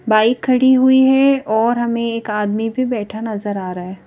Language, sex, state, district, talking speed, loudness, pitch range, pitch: Hindi, female, Madhya Pradesh, Bhopal, 205 wpm, -16 LUFS, 210-255 Hz, 230 Hz